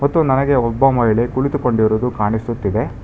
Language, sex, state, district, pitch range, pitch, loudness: Kannada, male, Karnataka, Bangalore, 110-135 Hz, 120 Hz, -17 LUFS